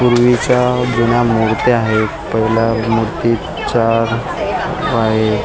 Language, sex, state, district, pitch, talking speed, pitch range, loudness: Marathi, male, Maharashtra, Mumbai Suburban, 115 Hz, 75 wpm, 110-120 Hz, -15 LUFS